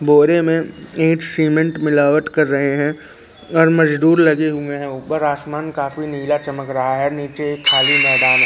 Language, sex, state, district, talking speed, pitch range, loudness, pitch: Hindi, male, Madhya Pradesh, Katni, 170 wpm, 140-155 Hz, -16 LUFS, 150 Hz